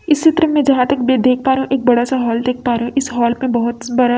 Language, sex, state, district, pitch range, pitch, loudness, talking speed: Hindi, female, Chhattisgarh, Raipur, 240-270 Hz, 250 Hz, -15 LUFS, 330 wpm